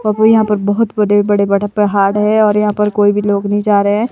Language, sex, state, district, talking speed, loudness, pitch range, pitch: Hindi, female, Himachal Pradesh, Shimla, 275 wpm, -13 LUFS, 205-215 Hz, 210 Hz